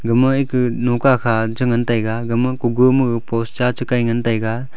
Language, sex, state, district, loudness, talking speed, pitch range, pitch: Wancho, male, Arunachal Pradesh, Longding, -17 LUFS, 150 wpm, 115-125 Hz, 120 Hz